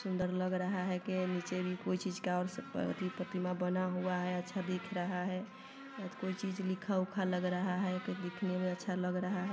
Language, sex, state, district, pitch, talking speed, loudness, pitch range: Hindi, female, Bihar, Sitamarhi, 185 Hz, 220 wpm, -37 LUFS, 180-190 Hz